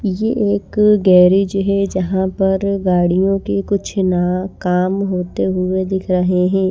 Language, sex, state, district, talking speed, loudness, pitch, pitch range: Hindi, female, Maharashtra, Washim, 145 wpm, -16 LUFS, 190 Hz, 185-195 Hz